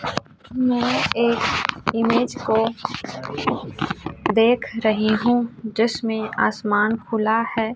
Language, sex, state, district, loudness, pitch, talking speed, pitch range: Hindi, male, Chhattisgarh, Raipur, -21 LUFS, 225 Hz, 85 wpm, 220-235 Hz